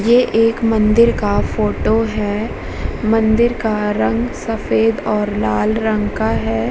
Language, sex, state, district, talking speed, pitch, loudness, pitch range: Hindi, female, Bihar, Vaishali, 135 wpm, 220 Hz, -16 LUFS, 205-225 Hz